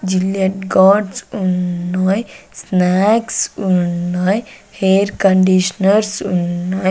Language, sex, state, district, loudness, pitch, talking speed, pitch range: Telugu, female, Andhra Pradesh, Sri Satya Sai, -16 LUFS, 190 Hz, 70 wpm, 185-195 Hz